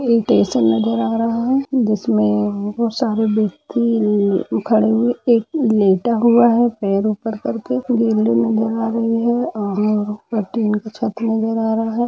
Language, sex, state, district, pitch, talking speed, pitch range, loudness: Hindi, female, Jharkhand, Jamtara, 225 Hz, 135 wpm, 210-235 Hz, -17 LUFS